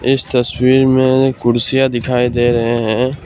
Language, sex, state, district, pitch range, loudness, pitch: Hindi, male, Assam, Kamrup Metropolitan, 120-130 Hz, -14 LUFS, 125 Hz